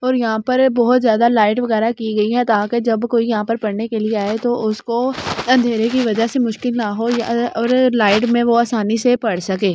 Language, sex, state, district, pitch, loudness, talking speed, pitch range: Hindi, female, Delhi, New Delhi, 230 Hz, -17 LUFS, 220 wpm, 220-240 Hz